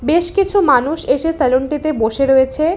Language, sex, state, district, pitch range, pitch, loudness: Bengali, female, West Bengal, Alipurduar, 265-330 Hz, 295 Hz, -15 LUFS